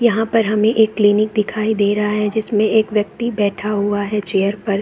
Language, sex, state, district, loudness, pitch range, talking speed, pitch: Hindi, female, Bihar, Saran, -17 LUFS, 205-220 Hz, 210 wpm, 210 Hz